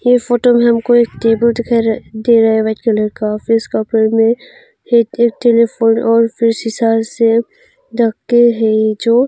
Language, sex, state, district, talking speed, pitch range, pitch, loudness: Hindi, female, Arunachal Pradesh, Longding, 135 wpm, 225-240 Hz, 230 Hz, -13 LUFS